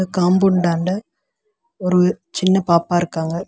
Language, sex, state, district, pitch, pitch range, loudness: Tamil, female, Tamil Nadu, Chennai, 180 Hz, 175-195 Hz, -18 LUFS